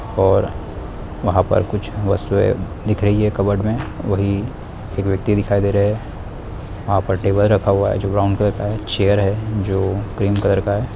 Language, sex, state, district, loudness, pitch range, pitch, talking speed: Hindi, male, Chhattisgarh, Balrampur, -18 LUFS, 100-105 Hz, 100 Hz, 190 wpm